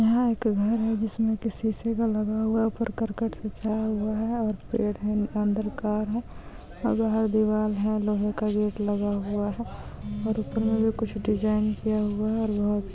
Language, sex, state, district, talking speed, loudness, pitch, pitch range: Hindi, female, West Bengal, Purulia, 175 wpm, -27 LUFS, 215 Hz, 210-225 Hz